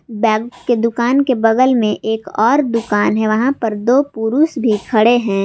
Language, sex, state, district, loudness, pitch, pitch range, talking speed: Hindi, female, Jharkhand, Garhwa, -15 LUFS, 230 Hz, 220-250 Hz, 185 wpm